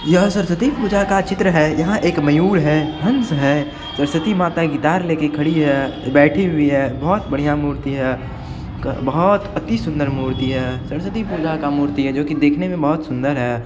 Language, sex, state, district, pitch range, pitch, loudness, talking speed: Hindi, male, Bihar, Supaul, 140-175 Hz, 150 Hz, -18 LUFS, 185 wpm